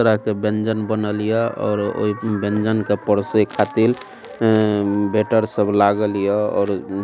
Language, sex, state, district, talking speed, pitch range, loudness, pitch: Maithili, male, Bihar, Supaul, 155 wpm, 105-110 Hz, -19 LUFS, 105 Hz